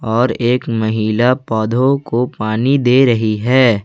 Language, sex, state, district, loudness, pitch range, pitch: Hindi, male, Jharkhand, Ranchi, -15 LUFS, 110-130 Hz, 120 Hz